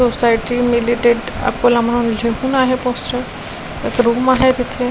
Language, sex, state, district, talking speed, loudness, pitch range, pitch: Marathi, female, Maharashtra, Washim, 110 wpm, -16 LUFS, 235-250 Hz, 245 Hz